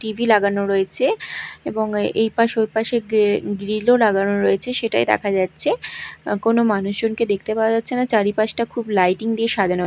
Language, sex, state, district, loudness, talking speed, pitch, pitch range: Bengali, female, Odisha, Malkangiri, -19 LUFS, 150 wpm, 220 Hz, 200-230 Hz